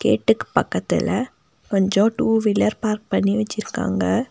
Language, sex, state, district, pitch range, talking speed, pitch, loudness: Tamil, female, Tamil Nadu, Nilgiris, 195-215 Hz, 110 wpm, 210 Hz, -21 LUFS